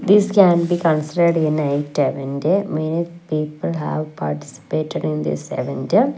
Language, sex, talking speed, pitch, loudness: English, female, 145 wpm, 155 Hz, -20 LUFS